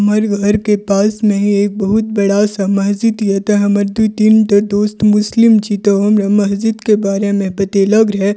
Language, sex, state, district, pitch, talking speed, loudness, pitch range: Maithili, female, Bihar, Purnia, 205 Hz, 200 wpm, -13 LUFS, 200-215 Hz